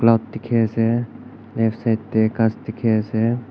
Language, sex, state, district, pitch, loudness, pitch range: Nagamese, male, Nagaland, Kohima, 115 Hz, -20 LUFS, 110-115 Hz